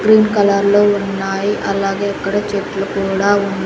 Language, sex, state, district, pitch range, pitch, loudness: Telugu, female, Andhra Pradesh, Sri Satya Sai, 195-205 Hz, 200 Hz, -16 LUFS